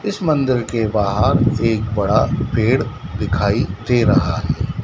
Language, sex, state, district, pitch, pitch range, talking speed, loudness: Hindi, male, Madhya Pradesh, Dhar, 115 Hz, 105-130 Hz, 135 wpm, -18 LUFS